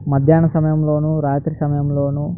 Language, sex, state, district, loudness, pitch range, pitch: Telugu, male, Andhra Pradesh, Anantapur, -17 LUFS, 145-155 Hz, 150 Hz